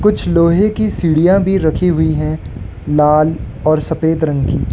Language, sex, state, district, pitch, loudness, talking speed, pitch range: Hindi, male, Arunachal Pradesh, Lower Dibang Valley, 160 Hz, -14 LUFS, 165 wpm, 150-175 Hz